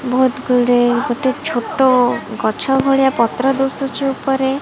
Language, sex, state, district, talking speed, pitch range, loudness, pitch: Odia, female, Odisha, Malkangiri, 130 wpm, 245-270 Hz, -16 LUFS, 265 Hz